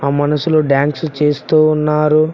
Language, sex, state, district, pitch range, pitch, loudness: Telugu, male, Telangana, Mahabubabad, 145-155 Hz, 150 Hz, -14 LUFS